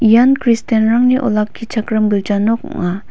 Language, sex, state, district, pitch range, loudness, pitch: Garo, female, Meghalaya, West Garo Hills, 210-240 Hz, -15 LUFS, 225 Hz